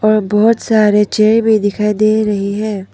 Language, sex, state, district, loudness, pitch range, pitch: Hindi, female, Arunachal Pradesh, Papum Pare, -13 LUFS, 210-215 Hz, 215 Hz